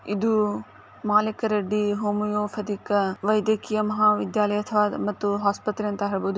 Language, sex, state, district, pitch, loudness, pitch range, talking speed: Kannada, female, Karnataka, Gulbarga, 210 Hz, -24 LUFS, 205-215 Hz, 105 wpm